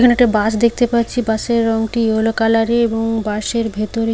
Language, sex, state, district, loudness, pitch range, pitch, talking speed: Bengali, female, West Bengal, Paschim Medinipur, -16 LUFS, 220-235 Hz, 225 Hz, 260 wpm